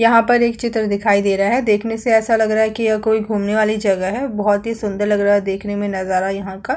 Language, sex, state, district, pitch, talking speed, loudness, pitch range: Hindi, female, Chhattisgarh, Kabirdham, 215 Hz, 290 wpm, -17 LUFS, 200-225 Hz